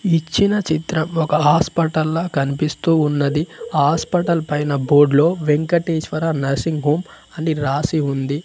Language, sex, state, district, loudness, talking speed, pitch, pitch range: Telugu, male, Telangana, Mahabubabad, -18 LUFS, 120 wpm, 155 Hz, 145-165 Hz